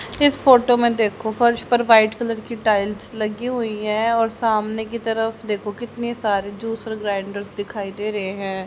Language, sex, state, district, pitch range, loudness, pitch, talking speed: Hindi, female, Haryana, Rohtak, 210-235 Hz, -20 LUFS, 220 Hz, 180 wpm